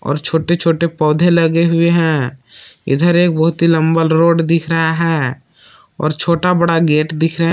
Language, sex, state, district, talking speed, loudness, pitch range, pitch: Hindi, male, Jharkhand, Palamu, 175 wpm, -14 LUFS, 155-170 Hz, 165 Hz